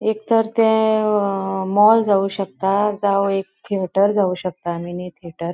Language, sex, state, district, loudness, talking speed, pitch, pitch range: Konkani, female, Goa, North and South Goa, -19 LUFS, 165 wpm, 195 Hz, 185-210 Hz